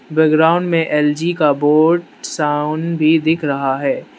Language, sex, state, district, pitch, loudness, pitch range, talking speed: Hindi, male, Manipur, Imphal West, 155 Hz, -15 LUFS, 150-165 Hz, 145 wpm